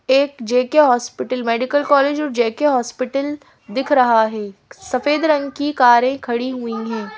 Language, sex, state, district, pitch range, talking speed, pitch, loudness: Hindi, female, Madhya Pradesh, Bhopal, 235-285 Hz, 150 wpm, 255 Hz, -17 LUFS